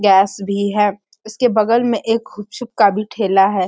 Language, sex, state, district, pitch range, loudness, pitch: Hindi, female, Bihar, Sitamarhi, 200-225 Hz, -16 LUFS, 205 Hz